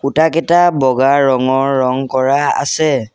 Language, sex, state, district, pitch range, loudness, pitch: Assamese, male, Assam, Sonitpur, 130-155 Hz, -13 LUFS, 135 Hz